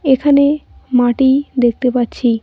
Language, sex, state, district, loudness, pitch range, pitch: Bengali, female, West Bengal, Cooch Behar, -14 LUFS, 245-280 Hz, 260 Hz